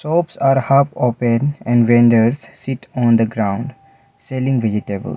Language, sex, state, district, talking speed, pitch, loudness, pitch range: English, male, Mizoram, Aizawl, 140 wpm, 125 Hz, -16 LUFS, 115-135 Hz